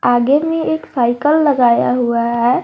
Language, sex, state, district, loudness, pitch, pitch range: Hindi, female, Jharkhand, Garhwa, -14 LUFS, 250 Hz, 240-300 Hz